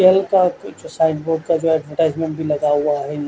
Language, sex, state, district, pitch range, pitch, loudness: Hindi, male, Odisha, Khordha, 150-165 Hz, 160 Hz, -18 LUFS